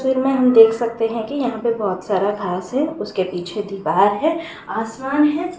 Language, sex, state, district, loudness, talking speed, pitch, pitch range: Hindi, female, Bihar, Bhagalpur, -19 LUFS, 205 wpm, 225 Hz, 200-270 Hz